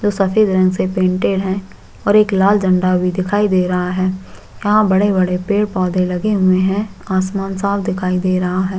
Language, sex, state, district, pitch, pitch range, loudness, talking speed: Hindi, female, Chhattisgarh, Jashpur, 190 Hz, 185-200 Hz, -16 LUFS, 205 wpm